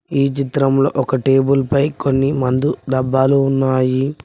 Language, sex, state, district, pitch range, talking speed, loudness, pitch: Telugu, male, Telangana, Mahabubabad, 130-140 Hz, 125 wpm, -16 LUFS, 135 Hz